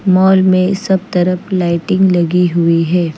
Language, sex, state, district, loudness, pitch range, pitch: Hindi, female, Chandigarh, Chandigarh, -13 LUFS, 175-190 Hz, 180 Hz